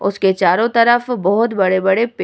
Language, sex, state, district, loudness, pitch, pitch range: Hindi, female, Bihar, Vaishali, -15 LUFS, 205 Hz, 190-235 Hz